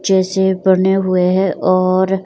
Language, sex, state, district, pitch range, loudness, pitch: Hindi, female, Himachal Pradesh, Shimla, 185-190 Hz, -14 LUFS, 190 Hz